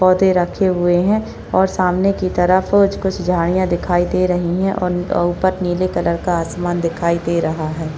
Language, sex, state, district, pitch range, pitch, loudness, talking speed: Hindi, female, Maharashtra, Chandrapur, 175-185 Hz, 180 Hz, -17 LUFS, 195 wpm